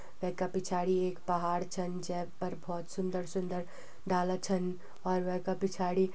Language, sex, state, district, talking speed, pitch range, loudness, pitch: Garhwali, female, Uttarakhand, Uttarkashi, 165 wpm, 180-185 Hz, -35 LUFS, 180 Hz